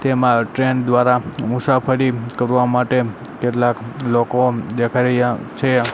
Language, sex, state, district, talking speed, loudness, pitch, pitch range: Gujarati, male, Gujarat, Gandhinagar, 110 wpm, -18 LUFS, 125 Hz, 120-130 Hz